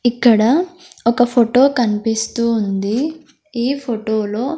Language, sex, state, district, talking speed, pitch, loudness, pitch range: Telugu, female, Andhra Pradesh, Sri Satya Sai, 105 wpm, 240 Hz, -17 LUFS, 225-275 Hz